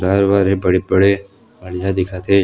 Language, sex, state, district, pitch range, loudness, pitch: Chhattisgarhi, male, Chhattisgarh, Sarguja, 90-100 Hz, -16 LUFS, 95 Hz